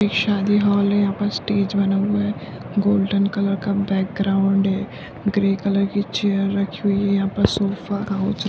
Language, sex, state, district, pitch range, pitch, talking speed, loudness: Hindi, female, Bihar, Jahanabad, 195-205 Hz, 200 Hz, 190 wpm, -20 LUFS